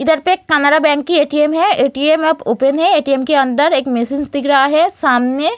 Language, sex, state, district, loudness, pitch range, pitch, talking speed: Hindi, female, Bihar, Gaya, -13 LUFS, 275-320 Hz, 295 Hz, 215 wpm